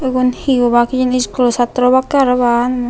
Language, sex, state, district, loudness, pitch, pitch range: Chakma, female, Tripura, Unakoti, -14 LUFS, 250 Hz, 245-255 Hz